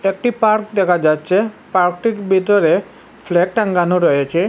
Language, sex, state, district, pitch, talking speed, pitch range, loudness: Bengali, male, Assam, Hailakandi, 195 Hz, 120 wpm, 175-215 Hz, -16 LUFS